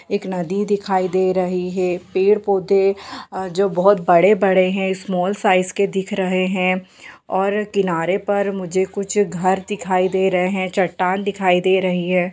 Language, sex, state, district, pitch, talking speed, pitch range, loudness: Hindi, female, Bihar, Bhagalpur, 190 Hz, 155 wpm, 185-200 Hz, -18 LUFS